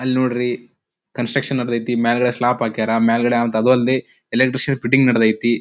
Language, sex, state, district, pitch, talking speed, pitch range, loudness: Kannada, male, Karnataka, Dharwad, 120 Hz, 140 wpm, 115-130 Hz, -18 LUFS